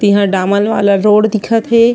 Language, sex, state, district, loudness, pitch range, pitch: Chhattisgarhi, female, Chhattisgarh, Sarguja, -12 LUFS, 200-225 Hz, 210 Hz